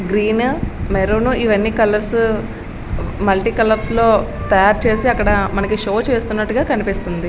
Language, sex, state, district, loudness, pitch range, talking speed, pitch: Telugu, female, Andhra Pradesh, Srikakulam, -16 LUFS, 205-230 Hz, 105 wpm, 215 Hz